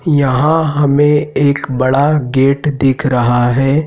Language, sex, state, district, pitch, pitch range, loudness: Hindi, male, Madhya Pradesh, Dhar, 140 Hz, 130-150 Hz, -13 LUFS